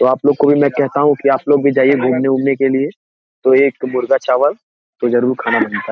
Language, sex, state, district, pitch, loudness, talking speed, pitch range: Hindi, male, Bihar, Jamui, 135 Hz, -14 LUFS, 245 wpm, 130-145 Hz